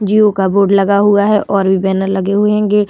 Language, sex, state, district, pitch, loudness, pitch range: Hindi, female, Bihar, Vaishali, 200 Hz, -12 LUFS, 195-210 Hz